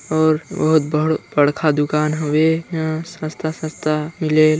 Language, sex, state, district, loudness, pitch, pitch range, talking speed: Chhattisgarhi, male, Chhattisgarh, Sarguja, -19 LUFS, 155 Hz, 155-160 Hz, 115 wpm